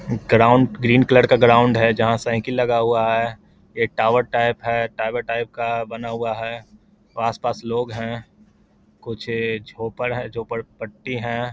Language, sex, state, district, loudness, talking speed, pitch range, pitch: Hindi, male, Bihar, Lakhisarai, -20 LUFS, 150 wpm, 115-120 Hz, 115 Hz